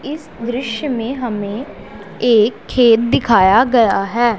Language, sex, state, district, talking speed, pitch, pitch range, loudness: Hindi, female, Punjab, Pathankot, 125 wpm, 235 Hz, 225-255 Hz, -15 LUFS